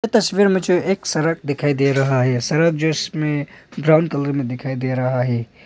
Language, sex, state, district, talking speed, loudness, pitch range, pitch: Hindi, male, Arunachal Pradesh, Longding, 200 wpm, -19 LUFS, 130-165 Hz, 145 Hz